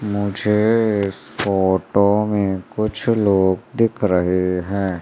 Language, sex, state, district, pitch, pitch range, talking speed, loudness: Hindi, male, Madhya Pradesh, Umaria, 100 Hz, 95-105 Hz, 95 wpm, -19 LUFS